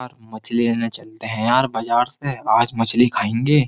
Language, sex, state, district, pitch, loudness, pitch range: Hindi, male, Uttar Pradesh, Jyotiba Phule Nagar, 120 Hz, -19 LUFS, 110-125 Hz